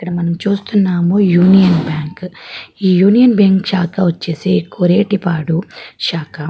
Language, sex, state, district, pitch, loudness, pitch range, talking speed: Telugu, female, Andhra Pradesh, Guntur, 180 Hz, -13 LUFS, 170-195 Hz, 120 wpm